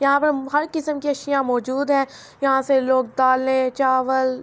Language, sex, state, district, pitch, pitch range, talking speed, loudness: Urdu, female, Andhra Pradesh, Anantapur, 270 Hz, 260-280 Hz, 175 wpm, -20 LUFS